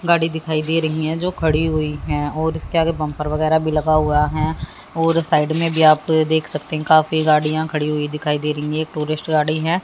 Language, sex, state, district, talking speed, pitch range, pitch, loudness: Hindi, female, Haryana, Jhajjar, 240 wpm, 150-160 Hz, 155 Hz, -19 LUFS